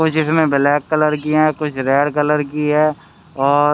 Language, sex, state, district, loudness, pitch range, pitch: Hindi, male, Haryana, Rohtak, -16 LUFS, 145-155 Hz, 150 Hz